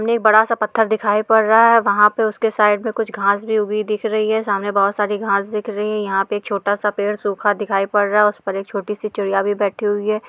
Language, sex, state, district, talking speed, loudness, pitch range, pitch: Hindi, female, Rajasthan, Churu, 275 wpm, -17 LUFS, 205-220 Hz, 210 Hz